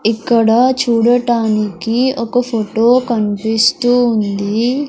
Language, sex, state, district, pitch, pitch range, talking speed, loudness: Telugu, male, Andhra Pradesh, Sri Satya Sai, 230 Hz, 220-245 Hz, 75 wpm, -14 LUFS